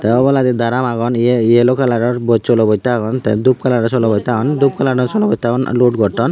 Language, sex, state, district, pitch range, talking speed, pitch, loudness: Chakma, male, Tripura, Unakoti, 115-130 Hz, 190 wpm, 120 Hz, -14 LUFS